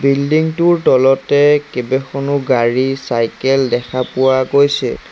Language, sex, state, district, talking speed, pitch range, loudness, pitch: Assamese, male, Assam, Sonitpur, 105 wpm, 130-140 Hz, -14 LUFS, 135 Hz